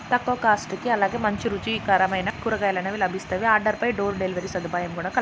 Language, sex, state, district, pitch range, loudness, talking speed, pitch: Telugu, female, Telangana, Karimnagar, 185-220 Hz, -24 LUFS, 170 wpm, 200 Hz